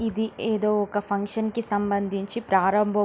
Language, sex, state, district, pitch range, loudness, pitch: Telugu, female, Andhra Pradesh, Srikakulam, 200-220 Hz, -25 LUFS, 205 Hz